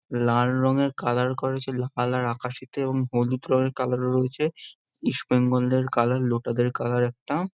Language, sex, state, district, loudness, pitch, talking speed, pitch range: Bengali, male, West Bengal, Jhargram, -25 LUFS, 125 Hz, 160 wpm, 120-130 Hz